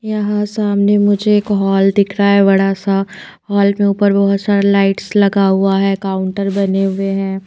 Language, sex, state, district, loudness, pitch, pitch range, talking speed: Hindi, female, Himachal Pradesh, Shimla, -14 LUFS, 200 Hz, 195-205 Hz, 185 wpm